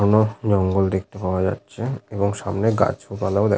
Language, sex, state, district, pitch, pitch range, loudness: Bengali, male, West Bengal, Jhargram, 100 Hz, 95-105 Hz, -22 LUFS